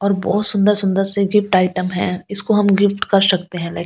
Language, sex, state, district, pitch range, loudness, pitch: Hindi, female, Delhi, New Delhi, 185-205 Hz, -16 LUFS, 195 Hz